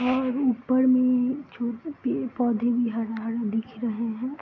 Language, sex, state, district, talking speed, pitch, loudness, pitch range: Hindi, female, Bihar, East Champaran, 135 wpm, 245 Hz, -26 LUFS, 230-255 Hz